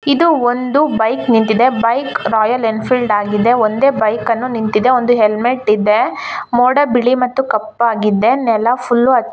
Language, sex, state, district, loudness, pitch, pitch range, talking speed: Kannada, female, Karnataka, Shimoga, -14 LUFS, 235 Hz, 220-250 Hz, 135 wpm